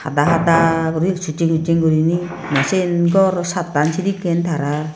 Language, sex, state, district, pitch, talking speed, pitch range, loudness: Chakma, female, Tripura, Unakoti, 165 Hz, 120 wpm, 155-175 Hz, -17 LUFS